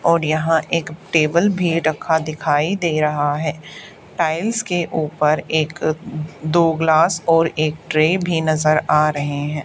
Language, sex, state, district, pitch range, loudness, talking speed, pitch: Hindi, female, Haryana, Charkhi Dadri, 155-165 Hz, -18 LUFS, 150 wpm, 155 Hz